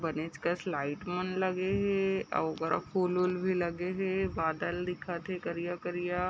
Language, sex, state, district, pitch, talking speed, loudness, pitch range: Chhattisgarhi, female, Chhattisgarh, Raigarh, 180 Hz, 170 wpm, -33 LUFS, 170-185 Hz